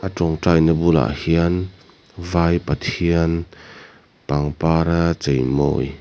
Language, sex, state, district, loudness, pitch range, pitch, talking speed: Mizo, male, Mizoram, Aizawl, -19 LUFS, 75-85 Hz, 85 Hz, 70 wpm